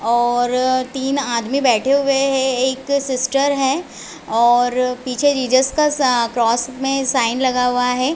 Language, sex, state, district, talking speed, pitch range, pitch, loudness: Hindi, female, Chhattisgarh, Raigarh, 140 wpm, 245-275 Hz, 260 Hz, -17 LUFS